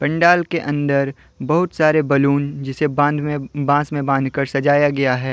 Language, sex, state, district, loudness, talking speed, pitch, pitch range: Hindi, male, Jharkhand, Deoghar, -18 LUFS, 170 wpm, 145 Hz, 140-150 Hz